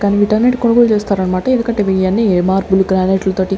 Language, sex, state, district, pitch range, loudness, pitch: Telugu, female, Andhra Pradesh, Sri Satya Sai, 190-220 Hz, -13 LUFS, 195 Hz